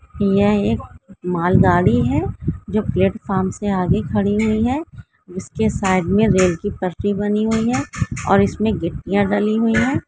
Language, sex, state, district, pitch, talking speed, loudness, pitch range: Hindi, female, Maharashtra, Solapur, 200 Hz, 155 wpm, -18 LUFS, 185-215 Hz